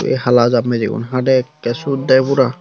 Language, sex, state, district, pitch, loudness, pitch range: Chakma, male, Tripura, Unakoti, 125 Hz, -15 LUFS, 120-135 Hz